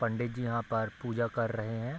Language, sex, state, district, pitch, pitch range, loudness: Hindi, male, Bihar, Gopalganj, 115 Hz, 115-120 Hz, -33 LUFS